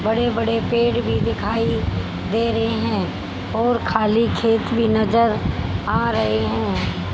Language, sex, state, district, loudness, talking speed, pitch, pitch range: Hindi, female, Haryana, Jhajjar, -20 LUFS, 135 wpm, 225 Hz, 215-230 Hz